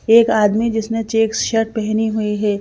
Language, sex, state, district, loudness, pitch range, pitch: Hindi, female, Madhya Pradesh, Bhopal, -17 LUFS, 215-225 Hz, 220 Hz